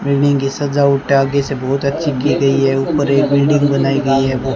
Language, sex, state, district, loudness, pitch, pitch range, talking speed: Hindi, male, Rajasthan, Bikaner, -15 LUFS, 140 Hz, 135-140 Hz, 210 wpm